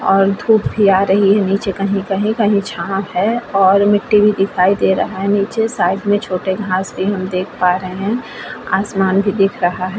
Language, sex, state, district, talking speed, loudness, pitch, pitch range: Hindi, female, Bihar, Vaishali, 200 wpm, -15 LUFS, 195 Hz, 190-205 Hz